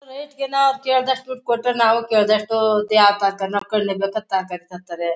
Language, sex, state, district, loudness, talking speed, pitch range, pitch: Kannada, female, Karnataka, Mysore, -19 LUFS, 95 wpm, 195-255 Hz, 215 Hz